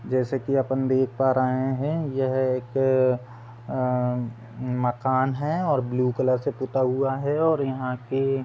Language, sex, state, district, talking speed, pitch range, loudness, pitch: Hindi, male, Uttar Pradesh, Deoria, 165 wpm, 125-135 Hz, -24 LUFS, 130 Hz